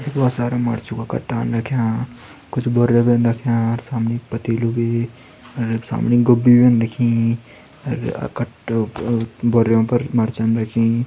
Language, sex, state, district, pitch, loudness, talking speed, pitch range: Hindi, male, Uttarakhand, Uttarkashi, 115 Hz, -19 LUFS, 125 wpm, 115-120 Hz